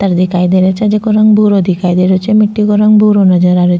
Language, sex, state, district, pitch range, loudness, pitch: Rajasthani, female, Rajasthan, Nagaur, 180-210 Hz, -9 LUFS, 195 Hz